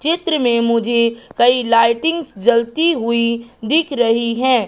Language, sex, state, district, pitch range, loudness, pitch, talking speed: Hindi, female, Madhya Pradesh, Katni, 230-280 Hz, -16 LUFS, 235 Hz, 130 wpm